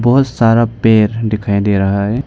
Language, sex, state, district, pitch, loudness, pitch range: Hindi, male, Arunachal Pradesh, Lower Dibang Valley, 110 Hz, -13 LUFS, 105-120 Hz